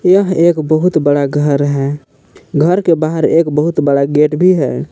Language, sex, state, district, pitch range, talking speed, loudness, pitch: Hindi, male, Jharkhand, Palamu, 145-170 Hz, 170 wpm, -13 LUFS, 155 Hz